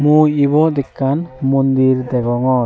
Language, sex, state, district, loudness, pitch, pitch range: Chakma, male, Tripura, Unakoti, -15 LUFS, 135 Hz, 130-150 Hz